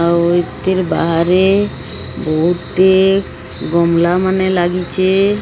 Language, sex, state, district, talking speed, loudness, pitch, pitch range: Odia, female, Odisha, Sambalpur, 90 wpm, -14 LUFS, 180 Hz, 170-190 Hz